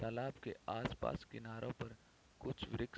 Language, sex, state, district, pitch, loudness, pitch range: Hindi, male, Bihar, Sitamarhi, 115 Hz, -46 LUFS, 110-125 Hz